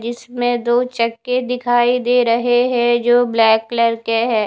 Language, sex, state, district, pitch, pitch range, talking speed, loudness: Hindi, female, Punjab, Fazilka, 240 Hz, 230-245 Hz, 160 wpm, -16 LUFS